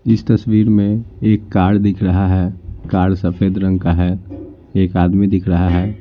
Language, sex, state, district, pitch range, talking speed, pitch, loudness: Hindi, male, Bihar, Patna, 90-105 Hz, 180 wpm, 95 Hz, -15 LUFS